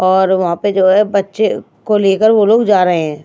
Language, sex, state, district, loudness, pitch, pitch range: Hindi, female, Bihar, Patna, -12 LUFS, 195 Hz, 185-210 Hz